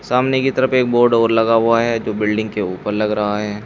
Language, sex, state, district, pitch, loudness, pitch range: Hindi, male, Uttar Pradesh, Saharanpur, 115 Hz, -16 LUFS, 105-120 Hz